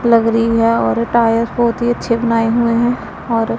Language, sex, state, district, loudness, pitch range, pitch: Hindi, female, Punjab, Pathankot, -15 LUFS, 230-235 Hz, 230 Hz